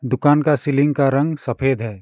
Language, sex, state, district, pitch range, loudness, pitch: Hindi, male, West Bengal, Alipurduar, 130-145 Hz, -18 LUFS, 140 Hz